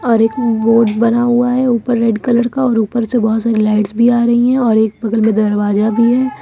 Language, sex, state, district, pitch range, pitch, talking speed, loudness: Hindi, female, Uttar Pradesh, Lucknow, 220-240 Hz, 230 Hz, 235 wpm, -13 LUFS